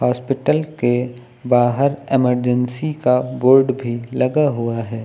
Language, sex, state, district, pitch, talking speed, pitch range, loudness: Hindi, male, Uttar Pradesh, Lucknow, 125 Hz, 120 wpm, 120-135 Hz, -18 LUFS